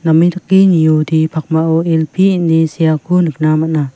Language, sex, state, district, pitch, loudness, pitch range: Garo, female, Meghalaya, West Garo Hills, 160 Hz, -12 LUFS, 155-175 Hz